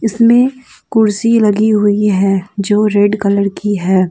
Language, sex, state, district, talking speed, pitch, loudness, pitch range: Hindi, female, Jharkhand, Deoghar, 145 wpm, 210 Hz, -12 LUFS, 200-220 Hz